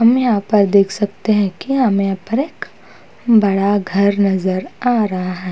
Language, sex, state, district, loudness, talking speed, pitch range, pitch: Hindi, female, Uttar Pradesh, Hamirpur, -16 LUFS, 185 wpm, 195-225 Hz, 200 Hz